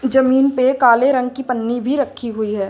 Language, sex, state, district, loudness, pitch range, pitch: Hindi, female, Uttar Pradesh, Lucknow, -16 LUFS, 235-265 Hz, 255 Hz